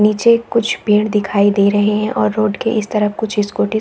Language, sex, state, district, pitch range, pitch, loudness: Hindi, female, Chhattisgarh, Raigarh, 205-220 Hz, 210 Hz, -15 LUFS